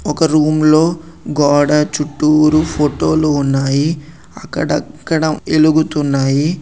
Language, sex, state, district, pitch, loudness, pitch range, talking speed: Telugu, male, Andhra Pradesh, Srikakulam, 155 Hz, -14 LUFS, 150-155 Hz, 90 wpm